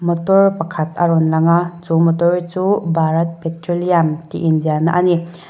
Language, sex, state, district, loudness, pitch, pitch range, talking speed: Mizo, female, Mizoram, Aizawl, -16 LUFS, 170 Hz, 165-175 Hz, 185 wpm